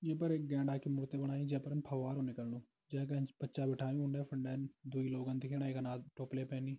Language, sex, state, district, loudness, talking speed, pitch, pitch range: Garhwali, male, Uttarakhand, Tehri Garhwal, -40 LUFS, 220 wpm, 135 Hz, 130-140 Hz